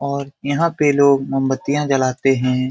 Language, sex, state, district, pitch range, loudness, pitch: Hindi, male, Bihar, Jamui, 135-140 Hz, -18 LUFS, 140 Hz